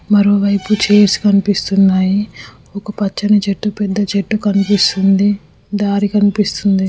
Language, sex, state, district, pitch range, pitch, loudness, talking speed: Telugu, male, Telangana, Karimnagar, 195-205 Hz, 200 Hz, -14 LUFS, 95 wpm